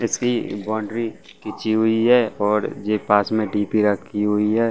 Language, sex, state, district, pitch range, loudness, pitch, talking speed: Hindi, male, Bihar, Saran, 105-115 Hz, -20 LUFS, 110 Hz, 165 wpm